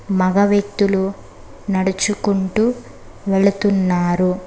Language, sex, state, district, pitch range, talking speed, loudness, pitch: Telugu, female, Telangana, Hyderabad, 190-205 Hz, 55 wpm, -18 LUFS, 195 Hz